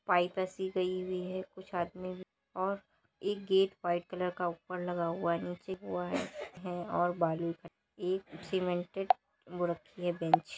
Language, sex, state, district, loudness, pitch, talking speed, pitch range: Hindi, male, Uttar Pradesh, Jalaun, -35 LUFS, 180 Hz, 180 wpm, 175-190 Hz